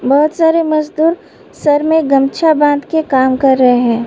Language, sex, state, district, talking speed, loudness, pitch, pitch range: Hindi, female, Uttar Pradesh, Budaun, 175 wpm, -12 LUFS, 295 Hz, 270-320 Hz